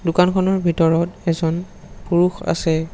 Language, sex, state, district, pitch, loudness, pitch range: Assamese, male, Assam, Sonitpur, 170 Hz, -19 LUFS, 165-180 Hz